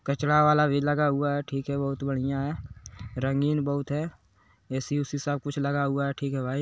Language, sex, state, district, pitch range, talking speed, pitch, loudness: Hindi, male, Bihar, Lakhisarai, 135-145 Hz, 215 wpm, 140 Hz, -27 LUFS